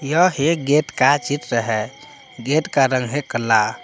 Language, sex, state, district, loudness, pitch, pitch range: Hindi, male, Jharkhand, Palamu, -19 LUFS, 140 Hz, 120-150 Hz